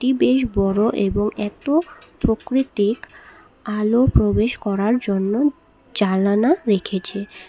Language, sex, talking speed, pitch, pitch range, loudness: Bengali, female, 95 wpm, 210 Hz, 200-255 Hz, -20 LUFS